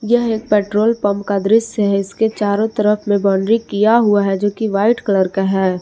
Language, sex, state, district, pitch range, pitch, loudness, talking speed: Hindi, female, Jharkhand, Palamu, 200-220 Hz, 210 Hz, -16 LUFS, 215 wpm